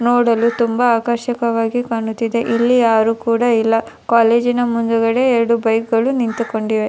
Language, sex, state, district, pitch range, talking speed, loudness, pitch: Kannada, female, Karnataka, Dharwad, 225-240 Hz, 130 wpm, -16 LUFS, 230 Hz